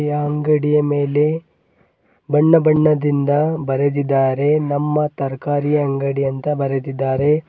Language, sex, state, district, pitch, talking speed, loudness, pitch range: Kannada, male, Karnataka, Bidar, 145 Hz, 90 wpm, -18 LUFS, 140-150 Hz